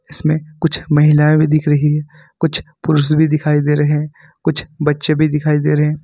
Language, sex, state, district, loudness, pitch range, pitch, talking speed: Hindi, male, Jharkhand, Ranchi, -15 LUFS, 150-155 Hz, 150 Hz, 190 wpm